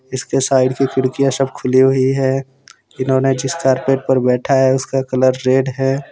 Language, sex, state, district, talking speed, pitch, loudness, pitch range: Hindi, male, Jharkhand, Deoghar, 175 wpm, 130 Hz, -16 LUFS, 130-135 Hz